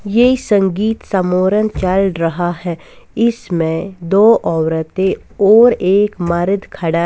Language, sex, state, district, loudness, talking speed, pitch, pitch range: Hindi, female, Bihar, West Champaran, -14 LUFS, 120 wpm, 190 Hz, 175-210 Hz